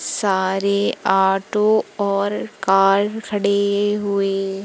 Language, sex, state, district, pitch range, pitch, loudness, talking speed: Hindi, female, Madhya Pradesh, Umaria, 195-205 Hz, 200 Hz, -19 LUFS, 75 wpm